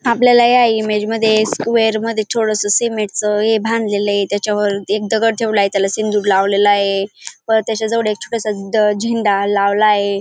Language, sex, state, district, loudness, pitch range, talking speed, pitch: Marathi, female, Maharashtra, Dhule, -15 LUFS, 205-225 Hz, 170 wpm, 215 Hz